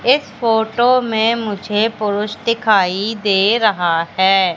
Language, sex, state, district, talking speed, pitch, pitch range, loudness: Hindi, female, Madhya Pradesh, Katni, 120 wpm, 215 Hz, 195-225 Hz, -16 LUFS